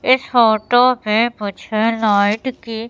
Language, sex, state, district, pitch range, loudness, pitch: Hindi, female, Madhya Pradesh, Katni, 215-245 Hz, -16 LUFS, 225 Hz